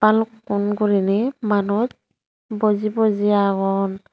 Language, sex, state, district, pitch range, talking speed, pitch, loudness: Chakma, female, Tripura, Unakoti, 200-220 Hz, 85 wpm, 210 Hz, -20 LUFS